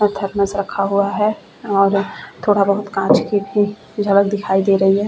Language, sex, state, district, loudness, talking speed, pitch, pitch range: Hindi, female, Chhattisgarh, Bastar, -17 LUFS, 175 wpm, 200 Hz, 195-205 Hz